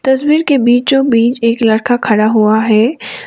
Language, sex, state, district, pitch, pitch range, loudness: Hindi, female, Sikkim, Gangtok, 240 Hz, 220-265 Hz, -11 LUFS